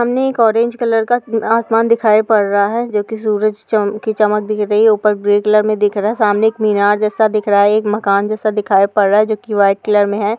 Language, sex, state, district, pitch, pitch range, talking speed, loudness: Hindi, female, Uttar Pradesh, Etah, 215 Hz, 205-220 Hz, 260 wpm, -14 LUFS